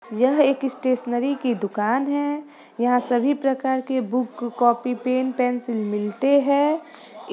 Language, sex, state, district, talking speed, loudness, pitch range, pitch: Hindi, female, Bihar, Gopalganj, 145 wpm, -22 LUFS, 240-280 Hz, 255 Hz